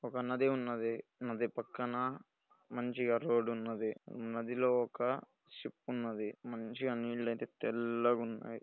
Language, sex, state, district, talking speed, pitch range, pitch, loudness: Telugu, male, Telangana, Nalgonda, 110 wpm, 115-125 Hz, 120 Hz, -37 LUFS